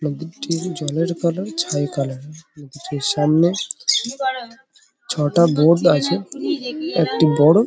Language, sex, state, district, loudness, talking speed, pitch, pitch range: Bengali, male, West Bengal, Paschim Medinipur, -19 LUFS, 110 wpm, 165 Hz, 150-230 Hz